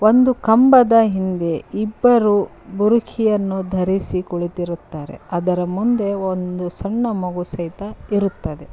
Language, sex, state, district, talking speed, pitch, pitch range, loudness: Kannada, female, Karnataka, Koppal, 95 wpm, 195 Hz, 180-220 Hz, -18 LUFS